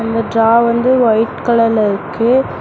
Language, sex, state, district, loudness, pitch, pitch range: Tamil, female, Tamil Nadu, Namakkal, -13 LUFS, 230 Hz, 225-235 Hz